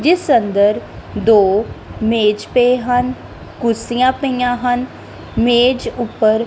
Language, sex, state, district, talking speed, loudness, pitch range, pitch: Punjabi, female, Punjab, Kapurthala, 100 wpm, -15 LUFS, 220-250 Hz, 240 Hz